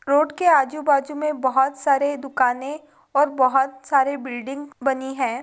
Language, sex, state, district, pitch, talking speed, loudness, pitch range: Hindi, female, Bihar, Gaya, 275 Hz, 155 wpm, -21 LUFS, 265-290 Hz